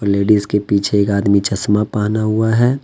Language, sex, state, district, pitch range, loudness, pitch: Hindi, male, Jharkhand, Deoghar, 100-110 Hz, -15 LUFS, 105 Hz